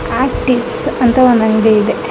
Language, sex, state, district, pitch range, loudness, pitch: Kannada, female, Karnataka, Mysore, 220-255 Hz, -12 LUFS, 240 Hz